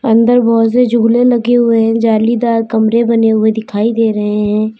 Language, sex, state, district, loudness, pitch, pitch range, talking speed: Hindi, female, Uttar Pradesh, Lalitpur, -11 LUFS, 225 Hz, 220-235 Hz, 185 wpm